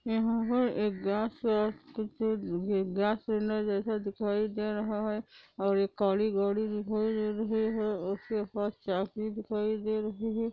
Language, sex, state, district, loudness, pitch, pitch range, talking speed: Hindi, female, Andhra Pradesh, Anantapur, -31 LUFS, 215 Hz, 205-220 Hz, 160 wpm